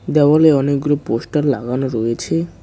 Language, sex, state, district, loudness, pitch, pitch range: Bengali, male, West Bengal, Cooch Behar, -16 LUFS, 135 Hz, 115-145 Hz